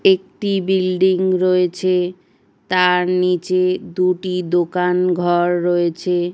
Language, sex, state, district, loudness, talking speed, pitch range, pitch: Bengali, female, West Bengal, Paschim Medinipur, -17 LUFS, 95 wpm, 180-185 Hz, 180 Hz